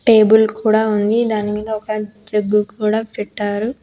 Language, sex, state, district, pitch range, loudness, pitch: Telugu, female, Telangana, Hyderabad, 210-220 Hz, -17 LUFS, 215 Hz